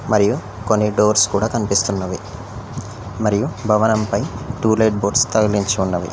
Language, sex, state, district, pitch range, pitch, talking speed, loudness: Telugu, male, Telangana, Mahabubabad, 100-110 Hz, 105 Hz, 105 wpm, -18 LUFS